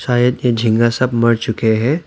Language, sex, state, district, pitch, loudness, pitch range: Hindi, male, Arunachal Pradesh, Lower Dibang Valley, 120 Hz, -15 LUFS, 115-125 Hz